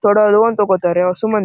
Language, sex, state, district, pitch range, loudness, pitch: Kannada, male, Karnataka, Gulbarga, 185-215 Hz, -14 LUFS, 205 Hz